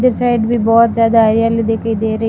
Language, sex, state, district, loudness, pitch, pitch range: Hindi, female, Rajasthan, Barmer, -13 LUFS, 230 Hz, 225-230 Hz